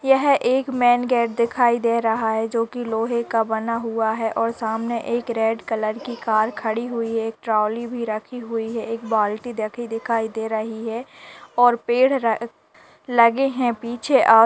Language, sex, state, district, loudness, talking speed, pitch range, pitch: Hindi, female, Uttar Pradesh, Jalaun, -21 LUFS, 170 wpm, 225-240 Hz, 230 Hz